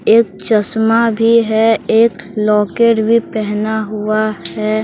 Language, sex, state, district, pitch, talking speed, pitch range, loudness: Hindi, male, Jharkhand, Deoghar, 220 Hz, 125 wpm, 215-225 Hz, -14 LUFS